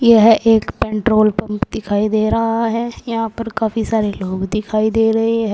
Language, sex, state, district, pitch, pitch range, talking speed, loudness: Hindi, female, Uttar Pradesh, Saharanpur, 220 Hz, 215-225 Hz, 185 wpm, -16 LUFS